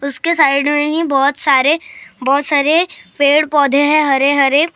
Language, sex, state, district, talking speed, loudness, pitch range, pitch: Hindi, male, Maharashtra, Gondia, 150 wpm, -13 LUFS, 280-305 Hz, 290 Hz